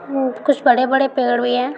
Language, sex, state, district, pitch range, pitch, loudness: Hindi, female, Bihar, Bhagalpur, 245-270 Hz, 260 Hz, -17 LUFS